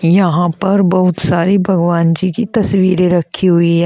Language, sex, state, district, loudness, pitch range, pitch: Hindi, female, Uttar Pradesh, Shamli, -13 LUFS, 170-190 Hz, 180 Hz